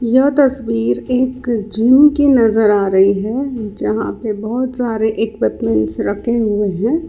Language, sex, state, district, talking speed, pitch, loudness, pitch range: Hindi, female, Karnataka, Bangalore, 145 wpm, 225 Hz, -15 LUFS, 210-255 Hz